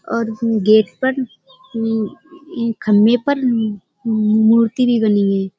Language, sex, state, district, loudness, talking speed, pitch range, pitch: Hindi, female, Uttar Pradesh, Budaun, -16 LUFS, 120 wpm, 215-245 Hz, 225 Hz